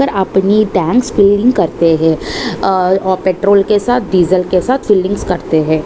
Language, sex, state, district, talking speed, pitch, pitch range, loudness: Hindi, female, Chhattisgarh, Bastar, 175 wpm, 195 Hz, 185-210 Hz, -12 LUFS